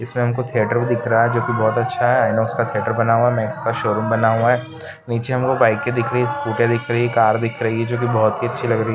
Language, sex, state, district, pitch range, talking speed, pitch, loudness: Hindi, male, Goa, North and South Goa, 115-120 Hz, 310 wpm, 120 Hz, -18 LUFS